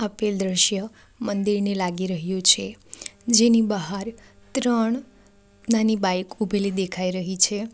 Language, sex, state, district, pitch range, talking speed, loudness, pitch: Gujarati, female, Gujarat, Valsad, 185-220 Hz, 115 wpm, -22 LUFS, 200 Hz